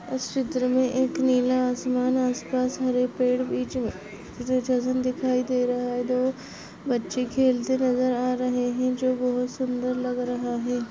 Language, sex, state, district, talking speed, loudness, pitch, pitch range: Hindi, female, Chhattisgarh, Raigarh, 155 wpm, -25 LUFS, 250 Hz, 250-255 Hz